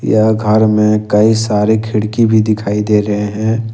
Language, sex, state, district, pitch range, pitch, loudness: Hindi, male, Jharkhand, Ranchi, 105-110 Hz, 110 Hz, -13 LUFS